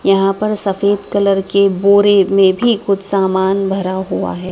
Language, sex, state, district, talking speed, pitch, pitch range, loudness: Hindi, female, Madhya Pradesh, Dhar, 170 wpm, 195 Hz, 190-200 Hz, -14 LUFS